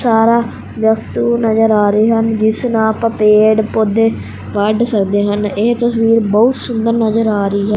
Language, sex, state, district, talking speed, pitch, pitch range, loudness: Punjabi, male, Punjab, Fazilka, 170 wpm, 220 Hz, 210-230 Hz, -13 LUFS